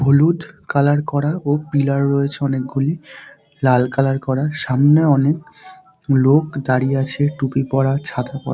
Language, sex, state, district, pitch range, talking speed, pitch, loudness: Bengali, male, West Bengal, Dakshin Dinajpur, 135-150 Hz, 135 wpm, 140 Hz, -18 LUFS